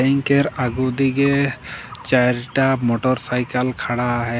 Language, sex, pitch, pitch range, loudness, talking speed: Sadri, male, 130 Hz, 125-135 Hz, -19 LUFS, 95 wpm